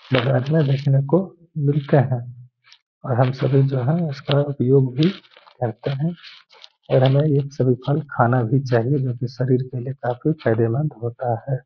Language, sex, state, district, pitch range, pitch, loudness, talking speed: Hindi, male, Bihar, Gaya, 125-145 Hz, 135 Hz, -20 LUFS, 155 wpm